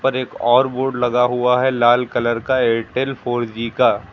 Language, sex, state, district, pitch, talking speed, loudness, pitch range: Hindi, male, Uttar Pradesh, Lucknow, 125 Hz, 205 wpm, -18 LUFS, 120-130 Hz